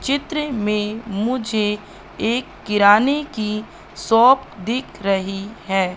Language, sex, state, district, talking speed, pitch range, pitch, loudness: Hindi, female, Madhya Pradesh, Katni, 100 wpm, 205-250 Hz, 215 Hz, -19 LUFS